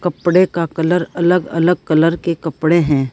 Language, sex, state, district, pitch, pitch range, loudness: Hindi, female, Uttar Pradesh, Saharanpur, 170 Hz, 160-175 Hz, -16 LUFS